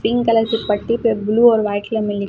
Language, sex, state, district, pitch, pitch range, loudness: Hindi, female, Chhattisgarh, Raipur, 225 Hz, 205-230 Hz, -17 LUFS